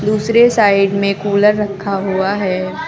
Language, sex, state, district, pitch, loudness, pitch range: Hindi, female, Uttar Pradesh, Lucknow, 200 Hz, -14 LUFS, 195-210 Hz